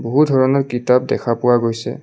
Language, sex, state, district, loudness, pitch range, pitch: Assamese, male, Assam, Kamrup Metropolitan, -16 LUFS, 120-135 Hz, 125 Hz